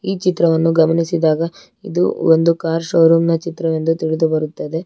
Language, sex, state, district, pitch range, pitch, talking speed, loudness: Kannada, female, Karnataka, Bangalore, 160-170 Hz, 165 Hz, 125 wpm, -16 LUFS